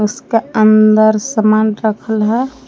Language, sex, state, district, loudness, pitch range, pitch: Hindi, female, Jharkhand, Palamu, -12 LUFS, 215-225 Hz, 215 Hz